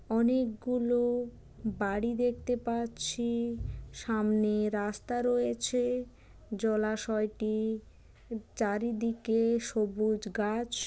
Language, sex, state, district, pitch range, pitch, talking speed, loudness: Bengali, female, West Bengal, Jalpaiguri, 215-240 Hz, 225 Hz, 60 wpm, -31 LUFS